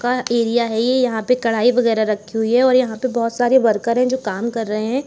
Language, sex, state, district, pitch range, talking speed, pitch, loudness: Hindi, female, Uttar Pradesh, Jalaun, 225-250 Hz, 260 wpm, 235 Hz, -18 LUFS